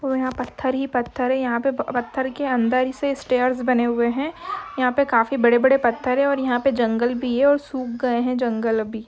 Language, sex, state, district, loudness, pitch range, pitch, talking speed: Hindi, female, Maharashtra, Dhule, -21 LUFS, 240-270 Hz, 255 Hz, 230 wpm